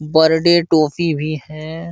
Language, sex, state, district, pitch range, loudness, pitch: Hindi, male, Uttar Pradesh, Jalaun, 155-170 Hz, -15 LUFS, 160 Hz